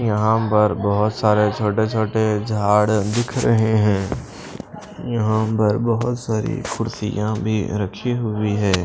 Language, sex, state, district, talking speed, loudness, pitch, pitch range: Hindi, male, Punjab, Pathankot, 130 wpm, -20 LUFS, 110 Hz, 105-110 Hz